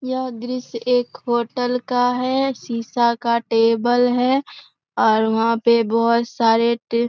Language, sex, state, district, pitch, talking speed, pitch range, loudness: Hindi, female, Bihar, Begusarai, 235 Hz, 145 wpm, 230-250 Hz, -19 LUFS